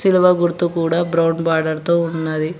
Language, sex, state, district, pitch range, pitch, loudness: Telugu, male, Telangana, Hyderabad, 160-175 Hz, 165 Hz, -17 LUFS